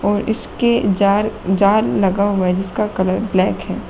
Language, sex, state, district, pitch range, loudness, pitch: Hindi, female, Uttar Pradesh, Shamli, 190-210 Hz, -17 LUFS, 200 Hz